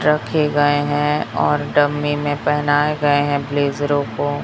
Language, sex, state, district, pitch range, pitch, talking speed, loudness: Hindi, male, Chhattisgarh, Raipur, 145-150 Hz, 145 Hz, 150 wpm, -18 LUFS